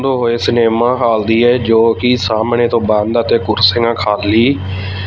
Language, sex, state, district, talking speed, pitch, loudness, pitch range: Punjabi, male, Punjab, Fazilka, 165 wpm, 115 Hz, -13 LUFS, 110-120 Hz